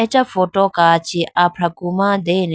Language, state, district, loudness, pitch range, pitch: Idu Mishmi, Arunachal Pradesh, Lower Dibang Valley, -16 LUFS, 175-195 Hz, 180 Hz